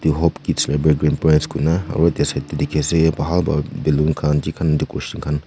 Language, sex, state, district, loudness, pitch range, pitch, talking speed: Nagamese, male, Nagaland, Kohima, -19 LUFS, 75-80 Hz, 75 Hz, 175 wpm